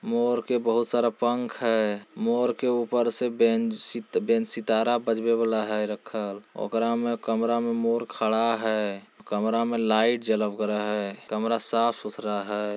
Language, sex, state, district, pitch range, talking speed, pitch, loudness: Hindi, male, Bihar, Jamui, 110-120 Hz, 165 wpm, 115 Hz, -26 LUFS